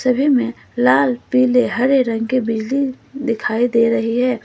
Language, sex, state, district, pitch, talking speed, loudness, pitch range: Hindi, female, Jharkhand, Ranchi, 245 Hz, 160 wpm, -17 LUFS, 225-255 Hz